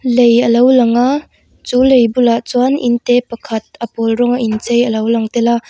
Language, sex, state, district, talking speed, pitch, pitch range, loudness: Mizo, female, Mizoram, Aizawl, 220 wpm, 240 Hz, 230-250 Hz, -13 LUFS